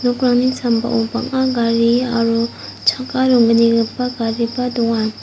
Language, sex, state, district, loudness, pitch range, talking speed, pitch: Garo, female, Meghalaya, South Garo Hills, -17 LUFS, 230-250 Hz, 90 wpm, 235 Hz